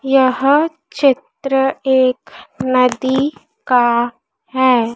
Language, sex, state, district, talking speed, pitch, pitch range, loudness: Hindi, female, Madhya Pradesh, Dhar, 75 wpm, 260 Hz, 250-275 Hz, -15 LUFS